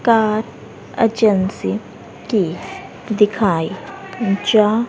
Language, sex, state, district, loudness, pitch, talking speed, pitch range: Hindi, female, Haryana, Rohtak, -18 LUFS, 215 Hz, 60 wpm, 205-225 Hz